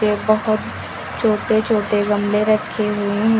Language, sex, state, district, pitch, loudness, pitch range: Hindi, female, Uttar Pradesh, Lucknow, 215 Hz, -19 LUFS, 210-220 Hz